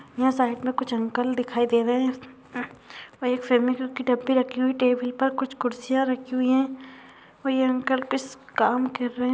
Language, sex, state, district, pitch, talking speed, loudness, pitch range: Hindi, female, Bihar, Sitamarhi, 255 Hz, 195 wpm, -25 LUFS, 245-260 Hz